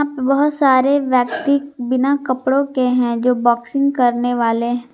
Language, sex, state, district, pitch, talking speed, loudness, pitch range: Hindi, female, Jharkhand, Garhwa, 255 Hz, 160 wpm, -17 LUFS, 245-280 Hz